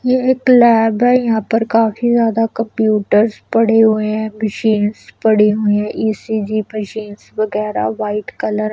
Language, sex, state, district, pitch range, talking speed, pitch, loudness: Hindi, female, Punjab, Kapurthala, 210-225 Hz, 150 wpm, 220 Hz, -15 LUFS